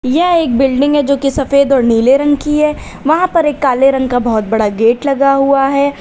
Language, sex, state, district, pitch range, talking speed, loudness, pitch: Hindi, female, Uttar Pradesh, Lalitpur, 260-290 Hz, 240 wpm, -12 LUFS, 275 Hz